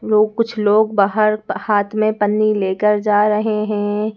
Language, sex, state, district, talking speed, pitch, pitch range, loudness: Hindi, female, Madhya Pradesh, Bhopal, 160 wpm, 210 Hz, 205-215 Hz, -17 LUFS